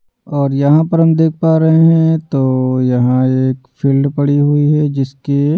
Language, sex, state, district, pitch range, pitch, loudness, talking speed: Hindi, male, Bihar, Patna, 135-160 Hz, 145 Hz, -13 LUFS, 170 wpm